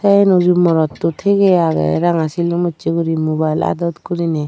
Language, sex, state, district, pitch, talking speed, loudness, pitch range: Chakma, female, Tripura, Dhalai, 170 Hz, 145 wpm, -15 LUFS, 160-175 Hz